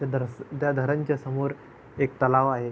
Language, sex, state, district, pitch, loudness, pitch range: Marathi, male, Maharashtra, Pune, 135 Hz, -26 LUFS, 130-140 Hz